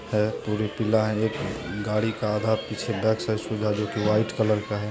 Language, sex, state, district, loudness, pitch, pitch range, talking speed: Hindi, male, Bihar, Purnia, -26 LUFS, 110 Hz, 105-110 Hz, 185 wpm